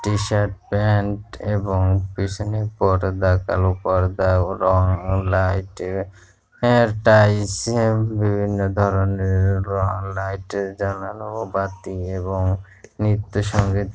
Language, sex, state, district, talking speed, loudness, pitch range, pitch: Bengali, male, West Bengal, Paschim Medinipur, 90 wpm, -21 LUFS, 95-105 Hz, 95 Hz